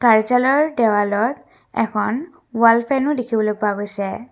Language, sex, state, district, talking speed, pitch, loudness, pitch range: Assamese, female, Assam, Kamrup Metropolitan, 110 wpm, 230 Hz, -18 LUFS, 210-250 Hz